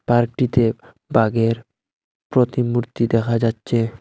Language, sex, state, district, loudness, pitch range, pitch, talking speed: Bengali, male, Assam, Hailakandi, -20 LUFS, 115-120 Hz, 115 Hz, 75 wpm